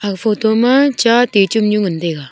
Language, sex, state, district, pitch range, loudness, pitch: Wancho, female, Arunachal Pradesh, Longding, 195-235 Hz, -13 LUFS, 215 Hz